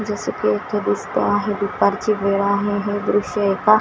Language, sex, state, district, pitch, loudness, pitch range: Marathi, female, Maharashtra, Washim, 205 Hz, -20 LUFS, 200-210 Hz